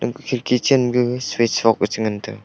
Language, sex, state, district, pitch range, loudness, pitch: Wancho, male, Arunachal Pradesh, Longding, 110-125 Hz, -19 LUFS, 120 Hz